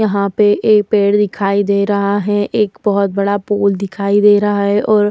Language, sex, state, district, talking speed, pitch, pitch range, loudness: Hindi, female, Uttar Pradesh, Hamirpur, 210 wpm, 205 Hz, 200-205 Hz, -14 LUFS